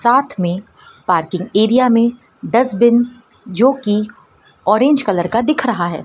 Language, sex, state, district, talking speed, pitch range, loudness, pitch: Hindi, female, Madhya Pradesh, Dhar, 130 wpm, 190-250 Hz, -15 LUFS, 230 Hz